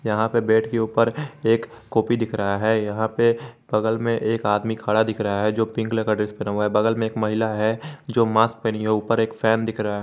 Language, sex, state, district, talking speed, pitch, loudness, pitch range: Hindi, male, Jharkhand, Garhwa, 255 wpm, 110 Hz, -22 LUFS, 110-115 Hz